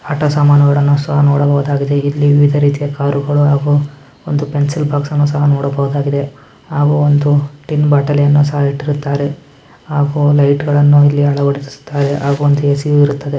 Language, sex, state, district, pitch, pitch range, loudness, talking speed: Kannada, male, Karnataka, Mysore, 145 Hz, 140-145 Hz, -13 LUFS, 140 wpm